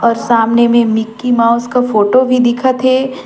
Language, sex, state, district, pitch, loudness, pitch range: Surgujia, female, Chhattisgarh, Sarguja, 235 Hz, -12 LUFS, 230-255 Hz